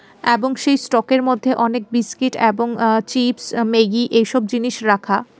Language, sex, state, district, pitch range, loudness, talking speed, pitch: Bengali, female, Tripura, West Tripura, 225-255 Hz, -17 LUFS, 145 wpm, 235 Hz